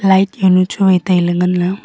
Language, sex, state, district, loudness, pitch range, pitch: Wancho, female, Arunachal Pradesh, Longding, -13 LUFS, 180-190 Hz, 185 Hz